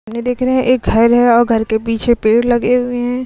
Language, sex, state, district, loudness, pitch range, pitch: Hindi, female, Uttar Pradesh, Muzaffarnagar, -13 LUFS, 230-250 Hz, 240 Hz